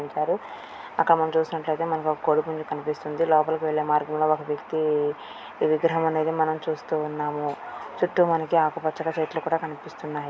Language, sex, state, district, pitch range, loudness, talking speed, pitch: Telugu, female, Andhra Pradesh, Srikakulam, 150-160 Hz, -25 LUFS, 145 wpm, 155 Hz